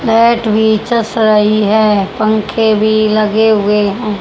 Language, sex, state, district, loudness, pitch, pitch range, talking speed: Hindi, male, Haryana, Rohtak, -11 LUFS, 215 Hz, 210-220 Hz, 140 wpm